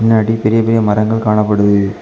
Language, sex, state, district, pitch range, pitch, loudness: Tamil, male, Tamil Nadu, Kanyakumari, 105-115 Hz, 110 Hz, -13 LUFS